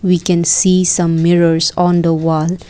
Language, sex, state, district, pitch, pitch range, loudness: English, female, Assam, Kamrup Metropolitan, 175 Hz, 165-180 Hz, -13 LUFS